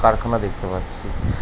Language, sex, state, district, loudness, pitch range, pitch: Bengali, male, West Bengal, North 24 Parganas, -24 LUFS, 95-110 Hz, 100 Hz